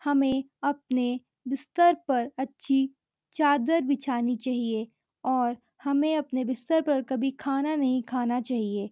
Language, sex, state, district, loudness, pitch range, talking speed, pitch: Hindi, female, Uttarakhand, Uttarkashi, -27 LUFS, 250-285 Hz, 120 wpm, 265 Hz